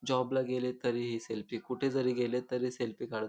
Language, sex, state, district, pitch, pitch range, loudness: Marathi, male, Maharashtra, Pune, 125 Hz, 120-130 Hz, -34 LUFS